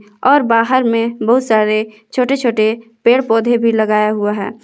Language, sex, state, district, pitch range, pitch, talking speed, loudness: Hindi, female, Jharkhand, Palamu, 215-240 Hz, 230 Hz, 170 wpm, -14 LUFS